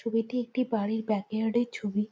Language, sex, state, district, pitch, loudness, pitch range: Bengali, female, West Bengal, Jhargram, 225 Hz, -30 LUFS, 215-235 Hz